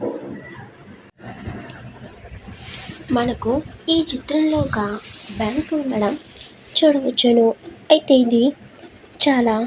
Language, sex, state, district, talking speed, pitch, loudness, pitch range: Telugu, female, Andhra Pradesh, Srikakulam, 70 wpm, 260 Hz, -18 LUFS, 230-300 Hz